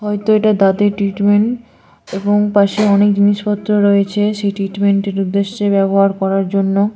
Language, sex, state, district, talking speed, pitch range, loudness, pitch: Bengali, female, West Bengal, Malda, 140 wpm, 195-205 Hz, -14 LUFS, 200 Hz